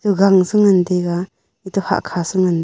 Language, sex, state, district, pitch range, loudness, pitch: Wancho, female, Arunachal Pradesh, Longding, 175-195 Hz, -16 LUFS, 185 Hz